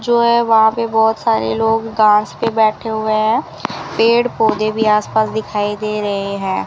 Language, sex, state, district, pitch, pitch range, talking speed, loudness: Hindi, female, Rajasthan, Bikaner, 220 Hz, 210-225 Hz, 180 wpm, -15 LUFS